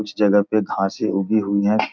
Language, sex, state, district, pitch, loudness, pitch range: Hindi, male, Bihar, Gopalganj, 105 Hz, -20 LUFS, 100-110 Hz